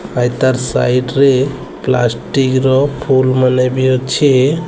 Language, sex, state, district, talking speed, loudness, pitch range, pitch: Odia, male, Odisha, Sambalpur, 130 wpm, -13 LUFS, 125-135 Hz, 130 Hz